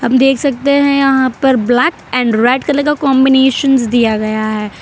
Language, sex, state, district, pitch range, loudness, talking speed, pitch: Hindi, female, Gujarat, Valsad, 240-275 Hz, -12 LUFS, 175 wpm, 265 Hz